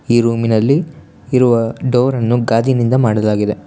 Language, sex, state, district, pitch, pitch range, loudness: Kannada, male, Karnataka, Bangalore, 120 Hz, 110-125 Hz, -14 LUFS